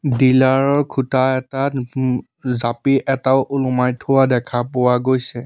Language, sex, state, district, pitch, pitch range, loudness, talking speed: Assamese, male, Assam, Sonitpur, 130 Hz, 125-135 Hz, -17 LUFS, 145 wpm